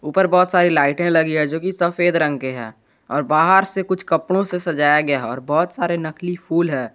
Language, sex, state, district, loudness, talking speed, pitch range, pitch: Hindi, male, Jharkhand, Garhwa, -18 LUFS, 225 wpm, 150-180 Hz, 170 Hz